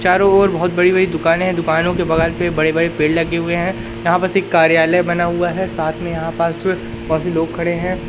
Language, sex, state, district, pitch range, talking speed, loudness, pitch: Hindi, male, Madhya Pradesh, Katni, 165-180 Hz, 205 wpm, -16 LUFS, 170 Hz